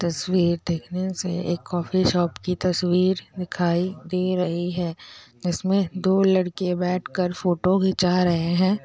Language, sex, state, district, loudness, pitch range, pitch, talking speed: Hindi, female, Bihar, Muzaffarpur, -23 LUFS, 175-185 Hz, 180 Hz, 135 wpm